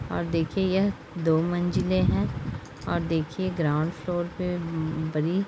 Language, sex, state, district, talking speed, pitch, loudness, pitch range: Hindi, female, Jharkhand, Jamtara, 140 wpm, 165 Hz, -27 LUFS, 155-180 Hz